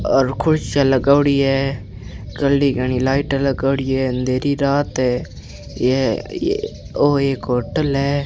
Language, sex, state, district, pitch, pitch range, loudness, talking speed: Hindi, female, Rajasthan, Bikaner, 135 Hz, 130-140 Hz, -18 LUFS, 125 wpm